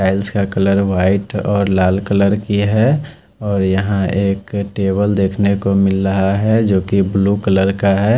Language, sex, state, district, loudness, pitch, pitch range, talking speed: Hindi, male, Odisha, Khordha, -15 LUFS, 100 Hz, 95-100 Hz, 175 wpm